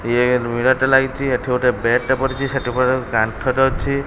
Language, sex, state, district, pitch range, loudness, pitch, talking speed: Odia, male, Odisha, Khordha, 125-135 Hz, -18 LUFS, 130 Hz, 220 wpm